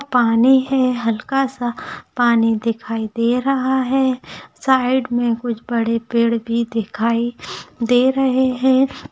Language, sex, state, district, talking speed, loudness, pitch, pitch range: Hindi, female, Maharashtra, Aurangabad, 125 wpm, -18 LUFS, 245 Hz, 230-260 Hz